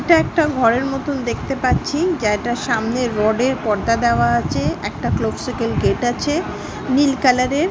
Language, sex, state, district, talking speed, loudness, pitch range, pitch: Bengali, female, West Bengal, Malda, 150 wpm, -18 LUFS, 230-285 Hz, 255 Hz